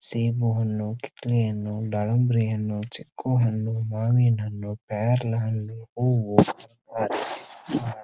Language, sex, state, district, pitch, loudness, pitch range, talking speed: Kannada, male, Karnataka, Dharwad, 115 Hz, -25 LUFS, 105-120 Hz, 95 wpm